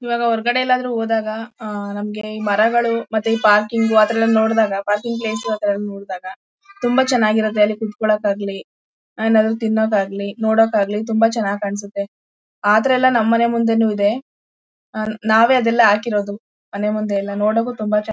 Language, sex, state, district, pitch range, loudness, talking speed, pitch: Kannada, female, Karnataka, Mysore, 205-230 Hz, -18 LUFS, 145 wpm, 220 Hz